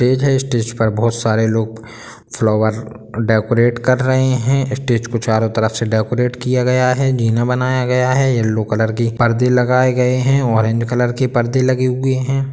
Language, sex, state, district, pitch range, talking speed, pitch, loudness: Hindi, male, Bihar, Sitamarhi, 115-130 Hz, 185 wpm, 120 Hz, -16 LUFS